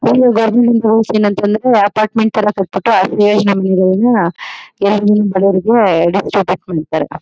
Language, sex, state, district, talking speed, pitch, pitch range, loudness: Kannada, female, Karnataka, Mysore, 65 wpm, 205 Hz, 190-220 Hz, -12 LUFS